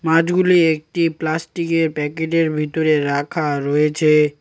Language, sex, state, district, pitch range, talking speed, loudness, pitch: Bengali, male, West Bengal, Cooch Behar, 150-165 Hz, 95 wpm, -18 LUFS, 160 Hz